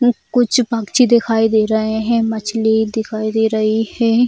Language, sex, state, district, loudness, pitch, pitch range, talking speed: Hindi, female, Bihar, Jamui, -16 LUFS, 225 Hz, 220-235 Hz, 180 wpm